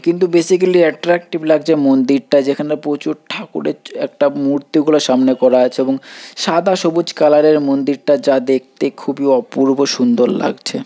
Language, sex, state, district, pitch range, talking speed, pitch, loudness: Bengali, male, West Bengal, Purulia, 135-160 Hz, 140 wpm, 145 Hz, -15 LUFS